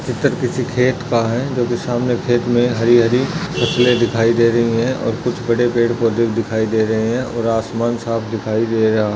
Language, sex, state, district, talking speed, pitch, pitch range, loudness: Hindi, male, Maharashtra, Nagpur, 210 wpm, 115 Hz, 115-120 Hz, -17 LUFS